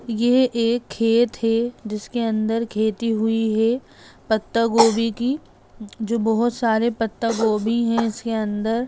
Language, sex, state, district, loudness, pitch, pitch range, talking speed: Hindi, female, Bihar, Jamui, -21 LUFS, 225 Hz, 220-235 Hz, 120 wpm